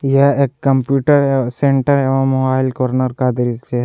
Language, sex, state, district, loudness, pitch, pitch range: Hindi, male, Jharkhand, Garhwa, -15 LUFS, 135 Hz, 130-140 Hz